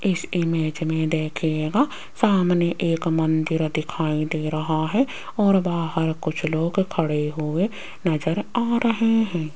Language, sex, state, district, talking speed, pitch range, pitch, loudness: Hindi, female, Rajasthan, Jaipur, 130 wpm, 155-195 Hz, 165 Hz, -23 LUFS